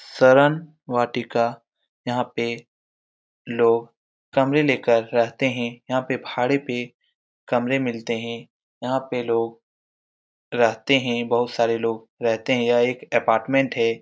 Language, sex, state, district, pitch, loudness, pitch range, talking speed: Hindi, male, Bihar, Saran, 120 Hz, -22 LUFS, 115-130 Hz, 130 wpm